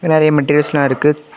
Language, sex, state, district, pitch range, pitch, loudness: Tamil, male, Tamil Nadu, Kanyakumari, 145-155 Hz, 150 Hz, -14 LUFS